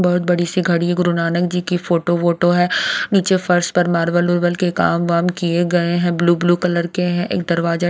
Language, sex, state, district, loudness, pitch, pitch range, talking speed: Hindi, female, Haryana, Rohtak, -17 LUFS, 175 Hz, 170-180 Hz, 215 wpm